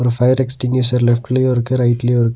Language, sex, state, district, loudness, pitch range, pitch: Tamil, male, Tamil Nadu, Nilgiris, -15 LUFS, 120-130 Hz, 125 Hz